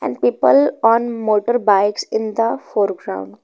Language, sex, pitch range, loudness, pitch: English, female, 195-230 Hz, -17 LUFS, 220 Hz